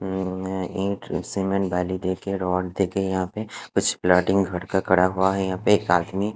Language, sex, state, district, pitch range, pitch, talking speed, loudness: Hindi, male, Punjab, Fazilka, 90-95 Hz, 95 Hz, 190 wpm, -23 LUFS